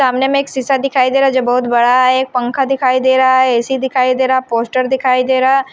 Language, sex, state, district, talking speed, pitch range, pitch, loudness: Hindi, female, Himachal Pradesh, Shimla, 295 wpm, 255-265 Hz, 260 Hz, -13 LUFS